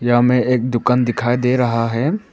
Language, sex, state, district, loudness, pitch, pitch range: Hindi, male, Arunachal Pradesh, Papum Pare, -17 LUFS, 125 Hz, 120-125 Hz